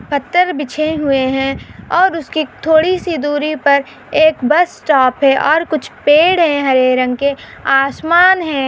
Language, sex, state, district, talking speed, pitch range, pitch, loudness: Hindi, female, Maharashtra, Pune, 150 wpm, 270-325 Hz, 295 Hz, -13 LUFS